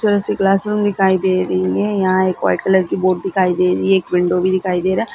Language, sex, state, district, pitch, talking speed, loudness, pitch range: Hindi, female, Bihar, Gaya, 185 Hz, 270 wpm, -16 LUFS, 180-195 Hz